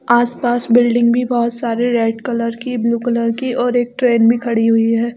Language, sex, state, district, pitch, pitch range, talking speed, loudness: Hindi, female, Bihar, Sitamarhi, 240 Hz, 230-245 Hz, 195 wpm, -16 LUFS